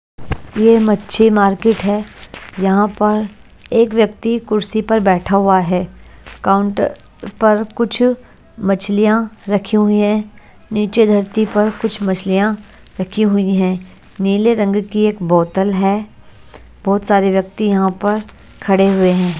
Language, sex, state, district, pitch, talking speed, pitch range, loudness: Hindi, female, Haryana, Jhajjar, 205 Hz, 130 wpm, 195-215 Hz, -15 LUFS